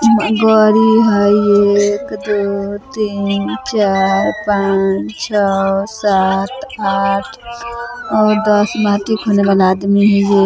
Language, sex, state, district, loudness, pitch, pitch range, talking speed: Bajjika, female, Bihar, Vaishali, -14 LUFS, 205 Hz, 195-215 Hz, 105 wpm